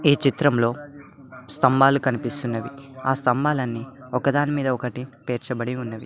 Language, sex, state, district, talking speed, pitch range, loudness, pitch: Telugu, male, Telangana, Mahabubabad, 100 wpm, 125-140 Hz, -23 LUFS, 130 Hz